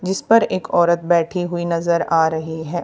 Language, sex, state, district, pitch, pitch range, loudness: Hindi, female, Haryana, Charkhi Dadri, 170 Hz, 165-175 Hz, -18 LUFS